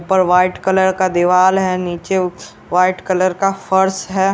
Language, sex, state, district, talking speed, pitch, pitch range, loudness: Hindi, male, Bihar, West Champaran, 165 wpm, 185 Hz, 180-190 Hz, -15 LUFS